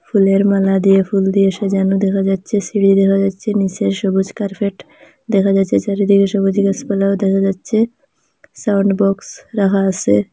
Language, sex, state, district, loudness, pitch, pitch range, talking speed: Bengali, female, Assam, Hailakandi, -15 LUFS, 195 Hz, 195-200 Hz, 150 wpm